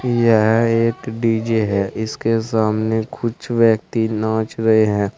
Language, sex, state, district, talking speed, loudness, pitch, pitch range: Hindi, male, Uttar Pradesh, Saharanpur, 125 wpm, -18 LUFS, 110 Hz, 110-115 Hz